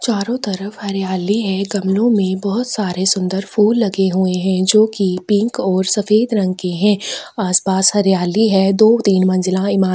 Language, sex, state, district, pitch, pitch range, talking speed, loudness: Hindi, female, Chhattisgarh, Kabirdham, 195 Hz, 190-215 Hz, 170 wpm, -16 LUFS